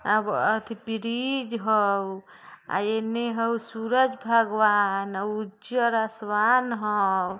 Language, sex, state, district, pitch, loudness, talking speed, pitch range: Bajjika, female, Bihar, Vaishali, 220 Hz, -25 LUFS, 95 wpm, 205-230 Hz